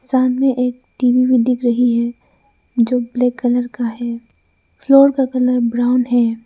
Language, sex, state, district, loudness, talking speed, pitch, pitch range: Hindi, female, Arunachal Pradesh, Lower Dibang Valley, -16 LUFS, 165 wpm, 245 Hz, 240-255 Hz